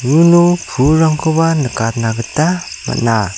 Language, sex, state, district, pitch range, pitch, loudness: Garo, male, Meghalaya, South Garo Hills, 115-165 Hz, 155 Hz, -13 LUFS